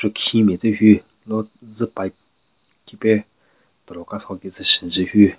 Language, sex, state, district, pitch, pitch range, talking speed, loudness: Rengma, male, Nagaland, Kohima, 105 Hz, 95-110 Hz, 165 wpm, -17 LUFS